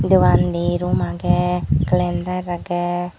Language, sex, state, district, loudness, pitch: Chakma, female, Tripura, Dhalai, -19 LUFS, 175 Hz